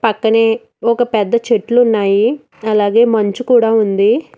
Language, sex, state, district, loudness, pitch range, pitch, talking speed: Telugu, female, Telangana, Hyderabad, -13 LUFS, 215-235 Hz, 225 Hz, 125 wpm